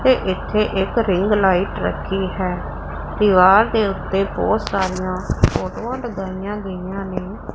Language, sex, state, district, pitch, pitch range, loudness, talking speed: Punjabi, female, Punjab, Pathankot, 195 Hz, 185-210 Hz, -19 LUFS, 120 wpm